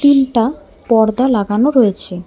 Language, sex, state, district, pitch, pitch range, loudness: Bengali, female, West Bengal, Alipurduar, 240 Hz, 215-270 Hz, -14 LUFS